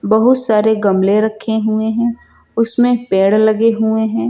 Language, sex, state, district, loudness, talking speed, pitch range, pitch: Hindi, female, Uttar Pradesh, Lucknow, -13 LUFS, 155 wpm, 215-230 Hz, 220 Hz